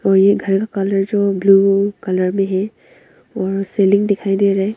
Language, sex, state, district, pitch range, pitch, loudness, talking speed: Hindi, female, Arunachal Pradesh, Longding, 195-200 Hz, 195 Hz, -16 LUFS, 175 wpm